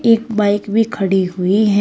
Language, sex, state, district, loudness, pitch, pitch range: Hindi, female, Uttar Pradesh, Shamli, -16 LUFS, 205 Hz, 195-225 Hz